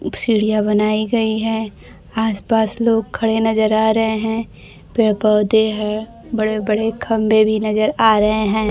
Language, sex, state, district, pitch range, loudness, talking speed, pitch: Hindi, female, Bihar, Kaimur, 215-225 Hz, -17 LUFS, 165 wpm, 220 Hz